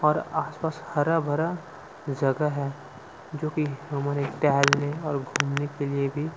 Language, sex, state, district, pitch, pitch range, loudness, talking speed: Hindi, male, Chhattisgarh, Sukma, 145 Hz, 140-155 Hz, -27 LUFS, 130 wpm